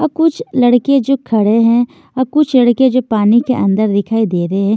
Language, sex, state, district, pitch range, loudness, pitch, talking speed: Hindi, female, Maharashtra, Washim, 215-260 Hz, -13 LUFS, 240 Hz, 215 wpm